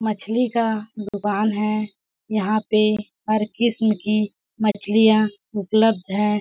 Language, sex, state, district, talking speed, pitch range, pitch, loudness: Hindi, female, Chhattisgarh, Balrampur, 120 wpm, 210-220 Hz, 215 Hz, -21 LUFS